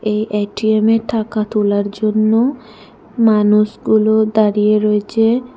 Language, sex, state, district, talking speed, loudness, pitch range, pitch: Bengali, female, Tripura, West Tripura, 85 wpm, -15 LUFS, 210-225 Hz, 215 Hz